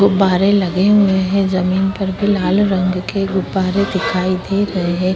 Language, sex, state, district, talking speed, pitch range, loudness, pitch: Hindi, female, Uttar Pradesh, Hamirpur, 175 wpm, 185-200 Hz, -16 LUFS, 190 Hz